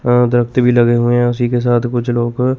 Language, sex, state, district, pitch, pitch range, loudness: Hindi, male, Chandigarh, Chandigarh, 120 Hz, 120-125 Hz, -14 LUFS